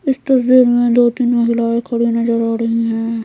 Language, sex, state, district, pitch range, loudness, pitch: Hindi, female, Bihar, Patna, 230-245 Hz, -14 LUFS, 235 Hz